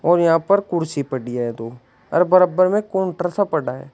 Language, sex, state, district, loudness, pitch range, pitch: Hindi, male, Uttar Pradesh, Shamli, -19 LUFS, 130-185 Hz, 170 Hz